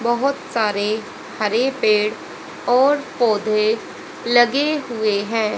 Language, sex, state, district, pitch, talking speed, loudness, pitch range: Hindi, female, Haryana, Rohtak, 225 Hz, 95 wpm, -19 LUFS, 215-250 Hz